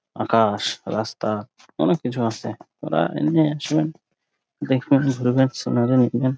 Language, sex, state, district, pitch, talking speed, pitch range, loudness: Bengali, male, West Bengal, Dakshin Dinajpur, 130 Hz, 105 wpm, 115-145 Hz, -21 LUFS